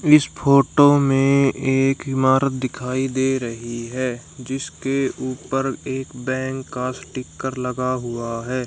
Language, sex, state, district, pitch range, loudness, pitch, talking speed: Hindi, male, Haryana, Rohtak, 125-135 Hz, -21 LUFS, 130 Hz, 125 wpm